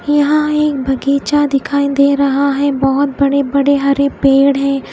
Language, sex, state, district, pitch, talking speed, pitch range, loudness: Hindi, female, Odisha, Khordha, 280 Hz, 160 wpm, 275-285 Hz, -13 LUFS